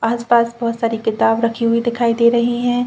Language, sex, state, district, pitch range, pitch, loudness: Hindi, female, Chhattisgarh, Bilaspur, 230-235 Hz, 235 Hz, -17 LUFS